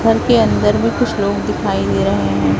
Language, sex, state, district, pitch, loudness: Hindi, female, Chhattisgarh, Raipur, 105 Hz, -15 LUFS